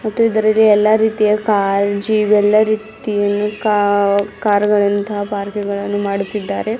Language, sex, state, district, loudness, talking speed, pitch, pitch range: Kannada, female, Karnataka, Bidar, -15 LUFS, 115 wpm, 210 Hz, 205-215 Hz